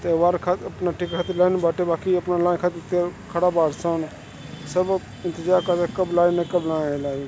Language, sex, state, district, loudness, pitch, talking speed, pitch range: Bhojpuri, male, Uttar Pradesh, Gorakhpur, -22 LUFS, 175 Hz, 205 wpm, 165-180 Hz